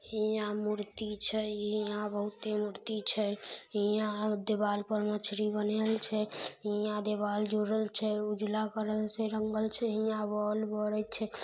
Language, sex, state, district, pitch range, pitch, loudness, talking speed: Maithili, female, Bihar, Samastipur, 210-215 Hz, 215 Hz, -33 LUFS, 135 wpm